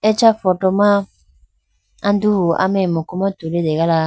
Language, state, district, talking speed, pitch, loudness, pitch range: Idu Mishmi, Arunachal Pradesh, Lower Dibang Valley, 120 wpm, 185 Hz, -17 LUFS, 160-200 Hz